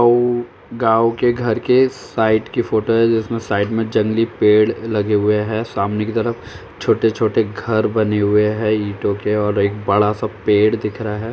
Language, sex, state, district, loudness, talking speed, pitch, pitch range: Hindi, male, Uttar Pradesh, Jalaun, -17 LUFS, 180 wpm, 110 Hz, 105-115 Hz